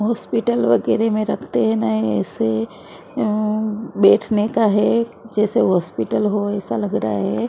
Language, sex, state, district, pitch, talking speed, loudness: Hindi, female, Maharashtra, Mumbai Suburban, 210 Hz, 150 wpm, -19 LUFS